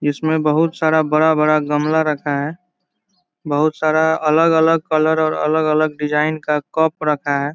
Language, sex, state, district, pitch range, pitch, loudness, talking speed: Hindi, male, Bihar, Saran, 150-160 Hz, 155 Hz, -17 LUFS, 145 wpm